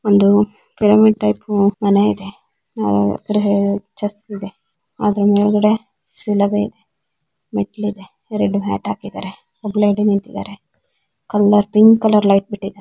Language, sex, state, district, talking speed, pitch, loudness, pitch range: Kannada, female, Karnataka, Belgaum, 115 wpm, 205 Hz, -16 LUFS, 200-210 Hz